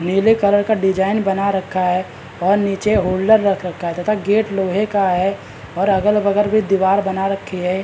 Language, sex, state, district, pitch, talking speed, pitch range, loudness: Hindi, male, Bihar, Madhepura, 195 Hz, 190 wpm, 190-205 Hz, -17 LUFS